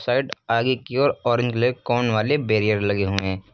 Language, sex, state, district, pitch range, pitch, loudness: Hindi, male, Uttar Pradesh, Lucknow, 105-125 Hz, 115 Hz, -22 LUFS